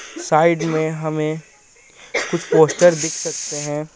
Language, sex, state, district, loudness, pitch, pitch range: Hindi, male, Jharkhand, Ranchi, -18 LUFS, 155 Hz, 150-165 Hz